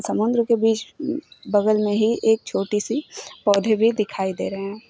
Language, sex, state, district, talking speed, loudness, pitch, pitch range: Hindi, female, Uttar Pradesh, Shamli, 185 wpm, -21 LUFS, 220 Hz, 205-230 Hz